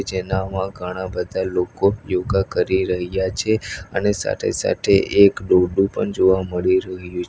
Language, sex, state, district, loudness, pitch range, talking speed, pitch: Gujarati, male, Gujarat, Valsad, -20 LUFS, 90-95 Hz, 150 wpm, 95 Hz